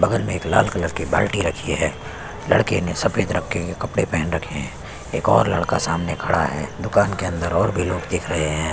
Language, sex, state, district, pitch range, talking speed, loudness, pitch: Hindi, male, Chhattisgarh, Sukma, 85-100 Hz, 225 wpm, -21 LUFS, 90 Hz